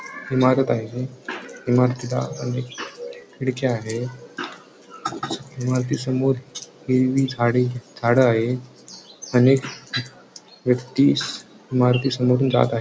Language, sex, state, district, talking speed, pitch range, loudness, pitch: Marathi, male, Maharashtra, Sindhudurg, 85 wpm, 125-130 Hz, -22 LUFS, 125 Hz